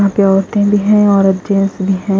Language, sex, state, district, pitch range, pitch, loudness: Hindi, female, Punjab, Kapurthala, 195-205 Hz, 200 Hz, -12 LUFS